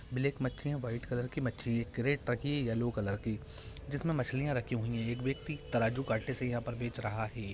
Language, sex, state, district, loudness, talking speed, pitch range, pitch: Hindi, male, Bihar, Purnia, -35 LUFS, 220 wpm, 115-135 Hz, 120 Hz